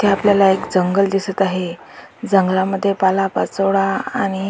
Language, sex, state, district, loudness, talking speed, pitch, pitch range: Marathi, female, Maharashtra, Dhule, -17 LUFS, 120 wpm, 195 Hz, 190-200 Hz